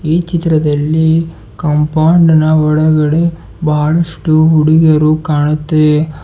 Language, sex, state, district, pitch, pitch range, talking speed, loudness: Kannada, male, Karnataka, Bidar, 155 Hz, 150-160 Hz, 75 wpm, -11 LUFS